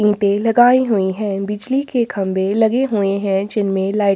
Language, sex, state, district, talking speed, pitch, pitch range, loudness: Hindi, female, Chhattisgarh, Korba, 185 wpm, 205 Hz, 195-225 Hz, -17 LUFS